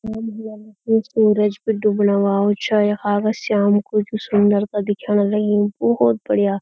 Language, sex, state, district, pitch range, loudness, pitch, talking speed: Garhwali, female, Uttarakhand, Uttarkashi, 205-215 Hz, -18 LUFS, 205 Hz, 180 wpm